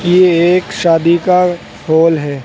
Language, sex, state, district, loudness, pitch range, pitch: Hindi, male, Uttar Pradesh, Saharanpur, -11 LUFS, 165-180 Hz, 170 Hz